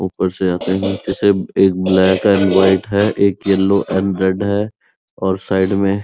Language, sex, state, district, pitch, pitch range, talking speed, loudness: Hindi, male, Uttar Pradesh, Muzaffarnagar, 95 Hz, 95-100 Hz, 180 wpm, -15 LUFS